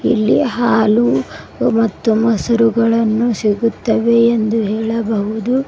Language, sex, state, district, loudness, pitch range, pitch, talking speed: Kannada, female, Karnataka, Bidar, -15 LUFS, 220-235 Hz, 225 Hz, 75 wpm